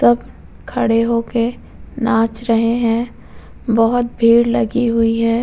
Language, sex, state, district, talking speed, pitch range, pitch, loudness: Hindi, female, Uttar Pradesh, Muzaffarnagar, 120 wpm, 230-235 Hz, 230 Hz, -16 LUFS